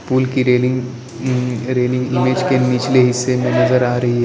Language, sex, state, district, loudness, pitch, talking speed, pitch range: Hindi, male, Arunachal Pradesh, Lower Dibang Valley, -16 LUFS, 125 Hz, 200 wpm, 125-130 Hz